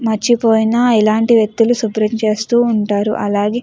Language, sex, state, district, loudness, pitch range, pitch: Telugu, female, Andhra Pradesh, Guntur, -14 LUFS, 215-230 Hz, 220 Hz